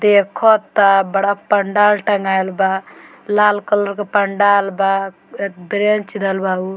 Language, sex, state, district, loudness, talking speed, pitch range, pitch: Bhojpuri, female, Bihar, Muzaffarpur, -16 LUFS, 140 wpm, 195-205 Hz, 200 Hz